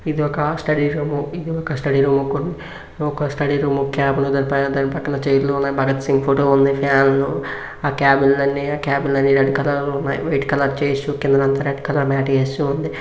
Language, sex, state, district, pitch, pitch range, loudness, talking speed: Telugu, male, Andhra Pradesh, Srikakulam, 140 Hz, 135-145 Hz, -18 LUFS, 170 wpm